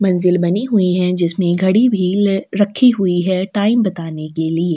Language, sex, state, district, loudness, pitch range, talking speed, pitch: Hindi, female, Chhattisgarh, Sukma, -16 LUFS, 175-200 Hz, 200 wpm, 185 Hz